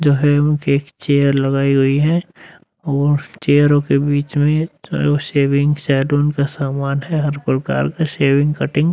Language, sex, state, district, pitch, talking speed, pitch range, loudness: Hindi, male, Uttar Pradesh, Muzaffarnagar, 145 Hz, 190 wpm, 140-150 Hz, -16 LUFS